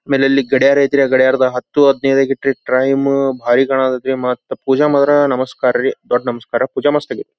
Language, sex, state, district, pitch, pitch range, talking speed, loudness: Kannada, male, Karnataka, Belgaum, 135 Hz, 130-140 Hz, 170 wpm, -14 LUFS